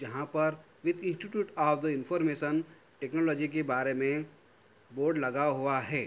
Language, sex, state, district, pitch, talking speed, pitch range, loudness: Hindi, male, Uttar Pradesh, Hamirpur, 150 Hz, 150 wpm, 135-160 Hz, -31 LUFS